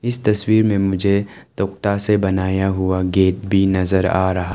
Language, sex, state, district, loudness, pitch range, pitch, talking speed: Hindi, male, Arunachal Pradesh, Lower Dibang Valley, -18 LUFS, 95-100 Hz, 95 Hz, 170 wpm